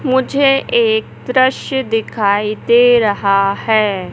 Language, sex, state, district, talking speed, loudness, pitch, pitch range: Hindi, male, Madhya Pradesh, Katni, 100 wpm, -14 LUFS, 240 Hz, 210-265 Hz